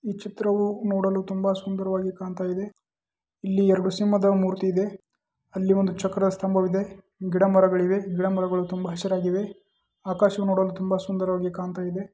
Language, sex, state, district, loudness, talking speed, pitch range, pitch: Kannada, male, Karnataka, Chamarajanagar, -25 LUFS, 135 wpm, 185-195 Hz, 190 Hz